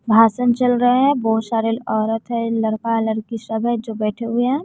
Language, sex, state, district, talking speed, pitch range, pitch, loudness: Hindi, female, Bihar, West Champaran, 205 wpm, 225-240 Hz, 230 Hz, -19 LUFS